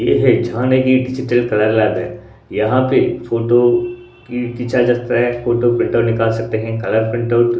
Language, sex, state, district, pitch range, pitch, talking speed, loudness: Hindi, male, Odisha, Sambalpur, 115-120 Hz, 120 Hz, 160 wpm, -16 LUFS